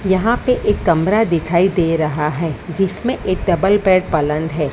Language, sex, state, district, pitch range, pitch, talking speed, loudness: Hindi, female, Maharashtra, Mumbai Suburban, 160-195 Hz, 175 Hz, 175 wpm, -17 LUFS